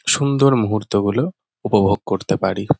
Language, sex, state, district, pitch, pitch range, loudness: Bengali, male, West Bengal, North 24 Parganas, 125 Hz, 105-140 Hz, -18 LUFS